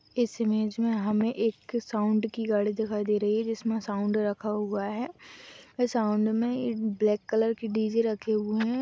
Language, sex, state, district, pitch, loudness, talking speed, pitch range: Hindi, female, Chhattisgarh, Kabirdham, 220 Hz, -28 LUFS, 185 wpm, 210-225 Hz